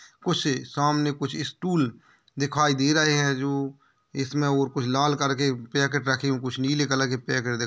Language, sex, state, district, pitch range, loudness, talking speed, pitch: Hindi, male, Uttar Pradesh, Hamirpur, 135-145 Hz, -25 LUFS, 190 wpm, 140 Hz